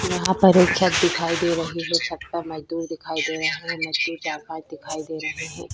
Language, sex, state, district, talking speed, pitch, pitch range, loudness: Hindi, female, Bihar, Vaishali, 240 wpm, 165 Hz, 160-170 Hz, -22 LUFS